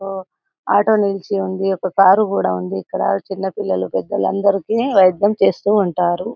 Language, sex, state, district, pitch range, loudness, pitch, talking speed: Telugu, female, Telangana, Karimnagar, 185-205 Hz, -17 LUFS, 195 Hz, 140 wpm